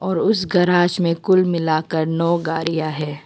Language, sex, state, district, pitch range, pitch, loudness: Hindi, female, Arunachal Pradesh, Papum Pare, 160-180 Hz, 170 Hz, -18 LUFS